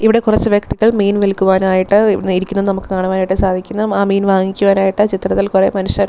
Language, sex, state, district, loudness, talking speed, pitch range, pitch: Malayalam, female, Kerala, Thiruvananthapuram, -14 LUFS, 175 wpm, 190-205 Hz, 195 Hz